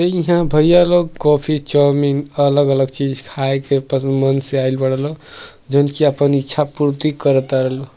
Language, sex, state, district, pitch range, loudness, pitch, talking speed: Bhojpuri, male, Uttar Pradesh, Gorakhpur, 135-150 Hz, -16 LUFS, 140 Hz, 165 wpm